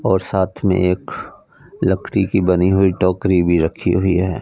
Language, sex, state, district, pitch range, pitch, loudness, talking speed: Hindi, male, Punjab, Fazilka, 90-95 Hz, 95 Hz, -17 LUFS, 175 wpm